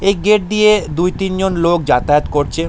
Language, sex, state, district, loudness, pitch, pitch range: Bengali, male, West Bengal, Jalpaiguri, -14 LUFS, 180 Hz, 155-195 Hz